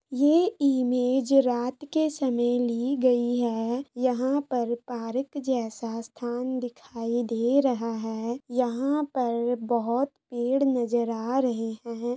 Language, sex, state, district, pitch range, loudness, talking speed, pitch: Hindi, female, Bihar, Araria, 235-265 Hz, -26 LUFS, 125 wpm, 245 Hz